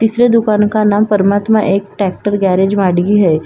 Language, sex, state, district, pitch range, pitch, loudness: Hindi, female, Maharashtra, Gondia, 195-215 Hz, 205 Hz, -12 LUFS